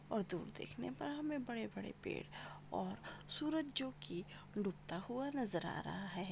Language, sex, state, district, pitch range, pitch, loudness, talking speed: Hindi, female, Rajasthan, Nagaur, 175-265 Hz, 205 Hz, -43 LUFS, 170 wpm